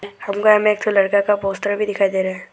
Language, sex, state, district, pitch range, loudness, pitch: Hindi, male, Arunachal Pradesh, Lower Dibang Valley, 195-210 Hz, -18 LUFS, 200 Hz